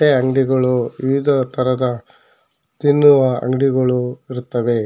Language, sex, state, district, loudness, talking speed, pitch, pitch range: Kannada, male, Karnataka, Shimoga, -16 LUFS, 75 wpm, 130 Hz, 125-135 Hz